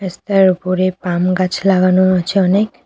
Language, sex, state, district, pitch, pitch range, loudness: Bengali, female, West Bengal, Cooch Behar, 185 Hz, 185-195 Hz, -14 LUFS